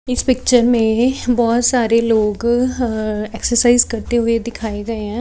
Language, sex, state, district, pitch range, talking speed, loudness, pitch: Hindi, female, Chhattisgarh, Raipur, 225-245 Hz, 140 wpm, -16 LUFS, 235 Hz